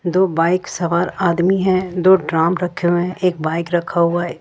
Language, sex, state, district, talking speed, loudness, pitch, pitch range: Hindi, female, Jharkhand, Ranchi, 205 wpm, -17 LUFS, 175 Hz, 170-185 Hz